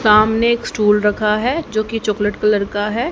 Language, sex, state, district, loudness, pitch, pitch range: Hindi, female, Haryana, Jhajjar, -16 LUFS, 215 Hz, 210-225 Hz